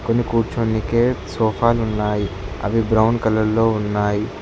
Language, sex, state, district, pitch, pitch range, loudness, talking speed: Telugu, male, Telangana, Hyderabad, 110 Hz, 105-115 Hz, -19 LUFS, 120 wpm